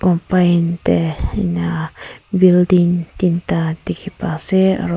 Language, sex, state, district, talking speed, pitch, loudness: Nagamese, female, Nagaland, Kohima, 85 wpm, 175 Hz, -16 LUFS